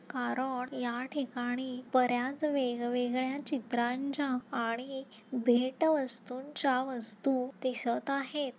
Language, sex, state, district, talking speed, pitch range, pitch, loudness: Marathi, female, Maharashtra, Nagpur, 85 wpm, 245-270 Hz, 255 Hz, -32 LUFS